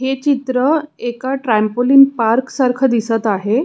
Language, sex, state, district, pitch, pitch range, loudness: Marathi, female, Maharashtra, Pune, 255 Hz, 230-270 Hz, -15 LUFS